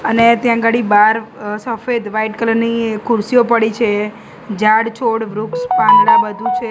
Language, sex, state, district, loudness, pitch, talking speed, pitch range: Gujarati, female, Gujarat, Gandhinagar, -14 LUFS, 230 Hz, 160 wpm, 215-235 Hz